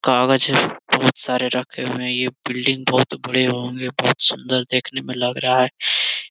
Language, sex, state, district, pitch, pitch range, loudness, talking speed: Hindi, male, Bihar, Jamui, 125 Hz, 125-130 Hz, -19 LUFS, 170 wpm